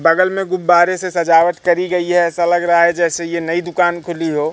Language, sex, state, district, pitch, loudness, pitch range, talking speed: Hindi, male, Madhya Pradesh, Katni, 175 Hz, -15 LUFS, 170-180 Hz, 240 wpm